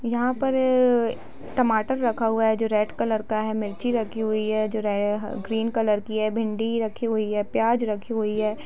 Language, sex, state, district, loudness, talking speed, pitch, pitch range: Hindi, female, Bihar, East Champaran, -24 LUFS, 195 wpm, 220 Hz, 215-235 Hz